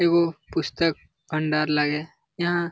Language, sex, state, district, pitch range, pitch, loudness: Hindi, male, Bihar, Jamui, 150-170 Hz, 165 Hz, -25 LUFS